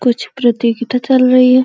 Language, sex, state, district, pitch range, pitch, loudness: Hindi, female, Uttar Pradesh, Deoria, 240-255 Hz, 250 Hz, -13 LUFS